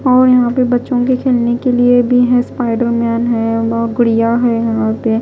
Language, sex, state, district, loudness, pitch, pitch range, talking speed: Hindi, female, Punjab, Pathankot, -13 LUFS, 240 Hz, 230-245 Hz, 205 wpm